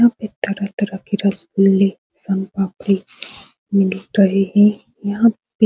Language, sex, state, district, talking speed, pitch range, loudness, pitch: Hindi, female, Bihar, Supaul, 115 wpm, 195-210 Hz, -18 LUFS, 200 Hz